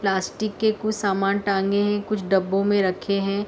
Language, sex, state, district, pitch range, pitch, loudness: Hindi, female, Uttar Pradesh, Etah, 195-205 Hz, 200 Hz, -23 LUFS